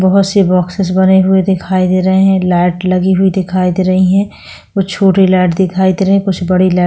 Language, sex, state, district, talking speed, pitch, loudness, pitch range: Hindi, female, Chhattisgarh, Korba, 235 wpm, 190 Hz, -11 LUFS, 185-190 Hz